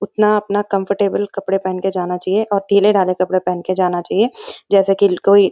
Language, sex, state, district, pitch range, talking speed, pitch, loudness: Hindi, female, Uttarakhand, Uttarkashi, 185-205 Hz, 205 wpm, 195 Hz, -16 LUFS